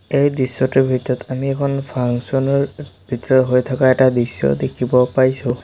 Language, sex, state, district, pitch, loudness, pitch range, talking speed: Assamese, male, Assam, Sonitpur, 130 Hz, -17 LUFS, 125-135 Hz, 150 wpm